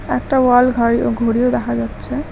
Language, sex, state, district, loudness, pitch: Bengali, female, West Bengal, Alipurduar, -16 LUFS, 230 Hz